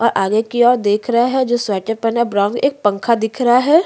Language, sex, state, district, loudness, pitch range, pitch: Hindi, female, Maharashtra, Aurangabad, -16 LUFS, 210-245 Hz, 235 Hz